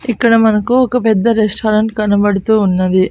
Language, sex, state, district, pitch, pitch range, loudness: Telugu, female, Andhra Pradesh, Annamaya, 215 Hz, 205-230 Hz, -13 LUFS